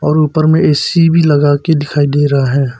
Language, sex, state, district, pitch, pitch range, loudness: Hindi, male, Arunachal Pradesh, Papum Pare, 145 Hz, 145-155 Hz, -11 LUFS